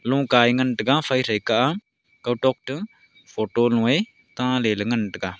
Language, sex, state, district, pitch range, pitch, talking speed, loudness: Wancho, male, Arunachal Pradesh, Longding, 115-130 Hz, 125 Hz, 200 wpm, -22 LUFS